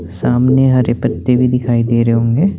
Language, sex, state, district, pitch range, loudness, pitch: Hindi, male, Chandigarh, Chandigarh, 120-130 Hz, -13 LUFS, 125 Hz